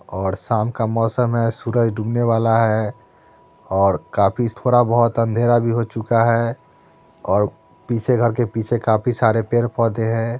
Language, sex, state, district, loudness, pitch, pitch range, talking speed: Hindi, male, Bihar, Muzaffarpur, -19 LUFS, 115 Hz, 110-120 Hz, 165 wpm